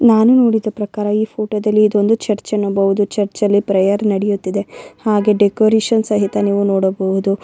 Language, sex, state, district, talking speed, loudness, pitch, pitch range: Kannada, female, Karnataka, Bellary, 155 wpm, -15 LUFS, 205 Hz, 200-215 Hz